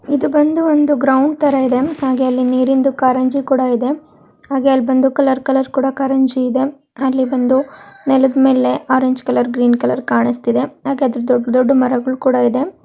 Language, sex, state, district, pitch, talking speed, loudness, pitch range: Kannada, male, Karnataka, Shimoga, 265 Hz, 165 wpm, -15 LUFS, 255-275 Hz